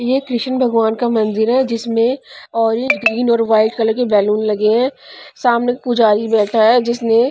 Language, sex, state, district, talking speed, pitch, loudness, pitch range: Hindi, female, Punjab, Pathankot, 170 wpm, 230 Hz, -15 LUFS, 220-245 Hz